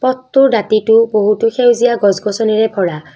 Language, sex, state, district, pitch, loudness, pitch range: Assamese, female, Assam, Kamrup Metropolitan, 220 Hz, -13 LUFS, 210-240 Hz